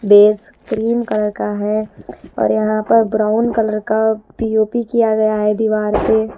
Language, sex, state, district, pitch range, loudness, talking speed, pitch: Hindi, female, Bihar, West Champaran, 210-220 Hz, -16 LUFS, 160 wpm, 215 Hz